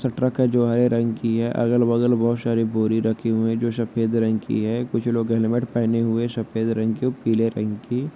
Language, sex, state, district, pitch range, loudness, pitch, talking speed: Hindi, male, Jharkhand, Jamtara, 115-120 Hz, -22 LUFS, 115 Hz, 235 wpm